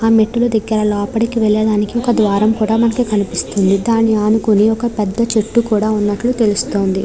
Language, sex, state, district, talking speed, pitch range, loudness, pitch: Telugu, female, Andhra Pradesh, Krishna, 155 wpm, 210-230 Hz, -15 LUFS, 215 Hz